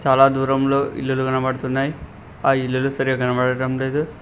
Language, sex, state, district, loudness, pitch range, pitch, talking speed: Telugu, male, Telangana, Mahabubabad, -20 LUFS, 130-135 Hz, 135 Hz, 130 wpm